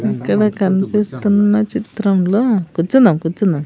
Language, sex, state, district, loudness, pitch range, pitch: Telugu, female, Andhra Pradesh, Sri Satya Sai, -15 LUFS, 190-215 Hz, 205 Hz